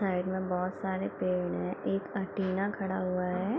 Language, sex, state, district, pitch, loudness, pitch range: Hindi, female, Bihar, Gopalganj, 185 Hz, -33 LUFS, 180-195 Hz